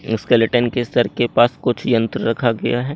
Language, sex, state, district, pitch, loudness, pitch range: Hindi, male, Madhya Pradesh, Katni, 120 Hz, -18 LUFS, 115-120 Hz